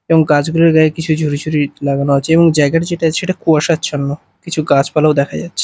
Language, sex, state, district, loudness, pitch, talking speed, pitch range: Bengali, male, Odisha, Malkangiri, -14 LUFS, 155 Hz, 190 wpm, 145-165 Hz